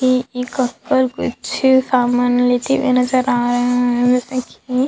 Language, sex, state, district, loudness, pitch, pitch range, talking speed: Hindi, female, Chhattisgarh, Sukma, -17 LUFS, 250 Hz, 245-255 Hz, 160 wpm